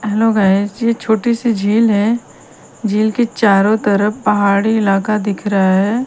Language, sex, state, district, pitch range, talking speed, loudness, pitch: Hindi, female, Punjab, Kapurthala, 200-225 Hz, 160 wpm, -14 LUFS, 210 Hz